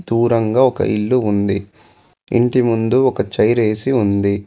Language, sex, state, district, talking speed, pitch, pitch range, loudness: Telugu, male, Telangana, Mahabubabad, 135 wpm, 115 Hz, 100-125 Hz, -16 LUFS